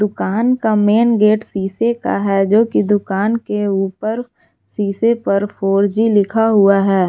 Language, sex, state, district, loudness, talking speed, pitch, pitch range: Hindi, female, Jharkhand, Garhwa, -15 LUFS, 150 wpm, 210 Hz, 200-225 Hz